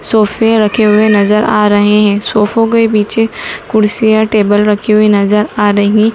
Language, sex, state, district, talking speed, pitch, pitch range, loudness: Hindi, male, Madhya Pradesh, Dhar, 165 wpm, 210 Hz, 205-220 Hz, -10 LUFS